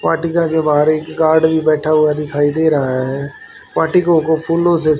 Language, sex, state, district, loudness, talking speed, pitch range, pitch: Hindi, male, Haryana, Rohtak, -15 LUFS, 205 wpm, 150-160 Hz, 155 Hz